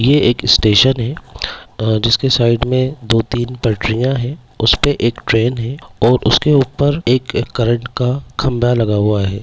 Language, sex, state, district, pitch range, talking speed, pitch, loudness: Hindi, male, Bihar, Darbhanga, 115-130 Hz, 165 wpm, 120 Hz, -15 LUFS